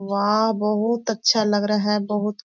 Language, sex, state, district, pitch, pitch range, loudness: Hindi, female, Chhattisgarh, Korba, 210 Hz, 205-220 Hz, -21 LUFS